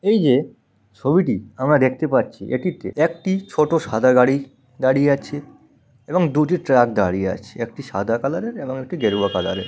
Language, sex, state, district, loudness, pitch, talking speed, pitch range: Bengali, male, West Bengal, Malda, -20 LUFS, 135 Hz, 165 wpm, 125-155 Hz